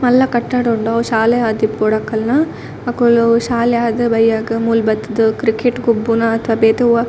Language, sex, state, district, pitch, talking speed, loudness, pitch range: Tulu, female, Karnataka, Dakshina Kannada, 230 Hz, 170 wpm, -15 LUFS, 225-240 Hz